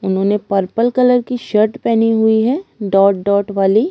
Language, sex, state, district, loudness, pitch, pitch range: Hindi, female, Chhattisgarh, Kabirdham, -15 LUFS, 215 Hz, 200-235 Hz